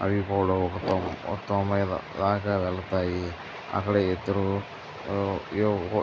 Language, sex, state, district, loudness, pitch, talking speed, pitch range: Telugu, male, Andhra Pradesh, Visakhapatnam, -27 LUFS, 100 Hz, 100 wpm, 90-100 Hz